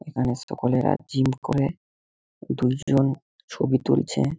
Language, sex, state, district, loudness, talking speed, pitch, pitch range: Bengali, male, West Bengal, Malda, -24 LUFS, 95 wpm, 130 Hz, 125-140 Hz